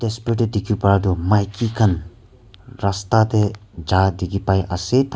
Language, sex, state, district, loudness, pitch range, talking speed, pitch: Nagamese, male, Nagaland, Kohima, -19 LUFS, 95-110 Hz, 150 wpm, 100 Hz